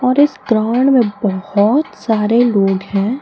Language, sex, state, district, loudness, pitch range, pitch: Hindi, female, Jharkhand, Palamu, -14 LUFS, 205-255 Hz, 220 Hz